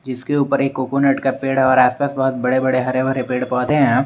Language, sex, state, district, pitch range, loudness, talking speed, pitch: Hindi, male, Jharkhand, Garhwa, 130-135 Hz, -17 LUFS, 250 wpm, 130 Hz